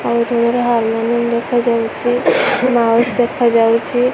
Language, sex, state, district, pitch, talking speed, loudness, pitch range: Odia, female, Odisha, Malkangiri, 235 Hz, 100 wpm, -15 LUFS, 230-245 Hz